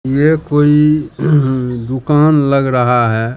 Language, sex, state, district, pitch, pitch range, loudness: Hindi, male, Bihar, Katihar, 140 Hz, 125-150 Hz, -13 LUFS